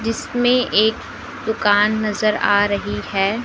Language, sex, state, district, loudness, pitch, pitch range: Hindi, female, Madhya Pradesh, Dhar, -18 LUFS, 215 Hz, 205-225 Hz